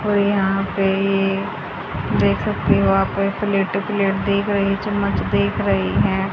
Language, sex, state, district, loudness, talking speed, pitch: Hindi, female, Haryana, Charkhi Dadri, -19 LUFS, 150 wpm, 195 Hz